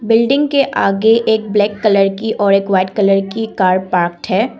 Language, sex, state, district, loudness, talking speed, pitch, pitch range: Hindi, female, Assam, Kamrup Metropolitan, -14 LUFS, 195 wpm, 205 Hz, 195-225 Hz